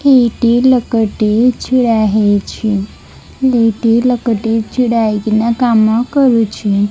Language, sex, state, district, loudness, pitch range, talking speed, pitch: Odia, female, Odisha, Malkangiri, -13 LUFS, 215-245 Hz, 85 wpm, 230 Hz